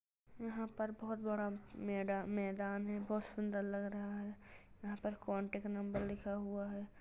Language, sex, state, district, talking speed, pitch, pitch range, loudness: Hindi, female, Uttar Pradesh, Jalaun, 155 wpm, 205 Hz, 200-210 Hz, -42 LUFS